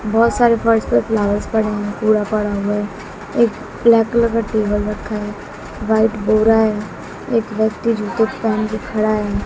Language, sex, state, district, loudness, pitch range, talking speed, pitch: Hindi, female, Bihar, West Champaran, -17 LUFS, 210-225 Hz, 185 wpm, 215 Hz